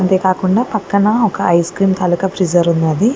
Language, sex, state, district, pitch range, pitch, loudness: Telugu, female, Andhra Pradesh, Guntur, 175-200 Hz, 190 Hz, -14 LUFS